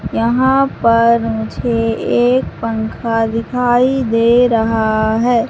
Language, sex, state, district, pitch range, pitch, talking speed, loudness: Hindi, female, Madhya Pradesh, Katni, 225-245 Hz, 230 Hz, 100 wpm, -14 LUFS